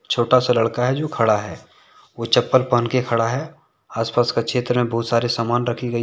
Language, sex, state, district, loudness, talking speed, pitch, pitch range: Hindi, male, Jharkhand, Deoghar, -20 LUFS, 230 wpm, 120 Hz, 115-125 Hz